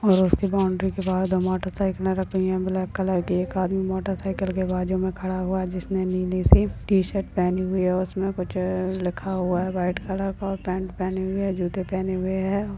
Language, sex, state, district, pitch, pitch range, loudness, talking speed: Hindi, male, Maharashtra, Nagpur, 185 Hz, 185-190 Hz, -25 LUFS, 215 wpm